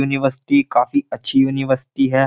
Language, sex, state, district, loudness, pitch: Hindi, male, Uttar Pradesh, Jyotiba Phule Nagar, -18 LUFS, 135 Hz